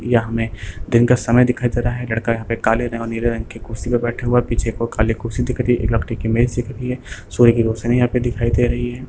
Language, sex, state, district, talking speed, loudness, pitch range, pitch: Hindi, male, Bihar, Lakhisarai, 310 wpm, -19 LUFS, 115-120 Hz, 120 Hz